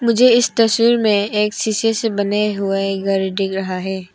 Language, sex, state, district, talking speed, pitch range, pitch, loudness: Hindi, female, Arunachal Pradesh, Papum Pare, 190 wpm, 195-225 Hz, 210 Hz, -17 LUFS